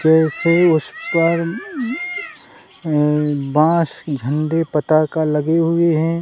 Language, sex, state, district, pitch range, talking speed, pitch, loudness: Hindi, male, Uttar Pradesh, Hamirpur, 150-170 Hz, 95 wpm, 160 Hz, -17 LUFS